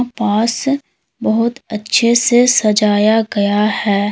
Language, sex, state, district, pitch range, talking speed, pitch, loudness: Hindi, female, Uttar Pradesh, Lalitpur, 210-240 Hz, 100 wpm, 220 Hz, -14 LUFS